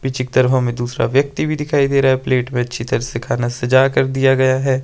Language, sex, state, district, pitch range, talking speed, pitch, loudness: Hindi, male, Himachal Pradesh, Shimla, 120-135 Hz, 275 wpm, 130 Hz, -17 LUFS